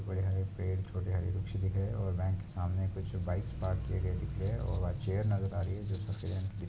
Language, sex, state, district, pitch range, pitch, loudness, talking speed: Hindi, male, Rajasthan, Nagaur, 95-100 Hz, 95 Hz, -35 LUFS, 270 wpm